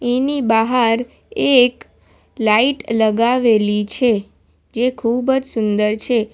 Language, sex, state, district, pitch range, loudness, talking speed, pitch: Gujarati, female, Gujarat, Valsad, 220-250 Hz, -16 LUFS, 105 wpm, 235 Hz